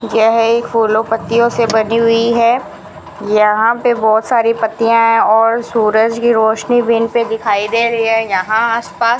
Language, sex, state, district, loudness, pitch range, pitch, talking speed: Hindi, female, Rajasthan, Bikaner, -13 LUFS, 220-235 Hz, 230 Hz, 180 wpm